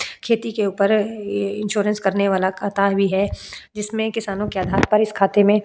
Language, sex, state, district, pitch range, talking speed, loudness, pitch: Hindi, female, Uttar Pradesh, Budaun, 195-210 Hz, 200 wpm, -20 LUFS, 205 Hz